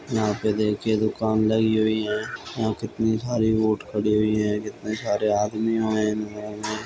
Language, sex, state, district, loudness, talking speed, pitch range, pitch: Hindi, male, Uttar Pradesh, Muzaffarnagar, -24 LUFS, 165 wpm, 105-110 Hz, 110 Hz